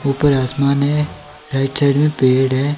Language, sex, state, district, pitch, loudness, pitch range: Hindi, male, Himachal Pradesh, Shimla, 140 Hz, -16 LUFS, 135-145 Hz